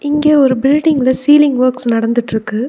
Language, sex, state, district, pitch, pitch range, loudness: Tamil, female, Tamil Nadu, Nilgiris, 260 Hz, 240-290 Hz, -12 LUFS